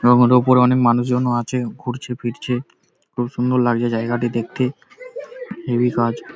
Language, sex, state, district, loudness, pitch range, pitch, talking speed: Bengali, male, West Bengal, Paschim Medinipur, -19 LUFS, 120-125 Hz, 125 Hz, 140 wpm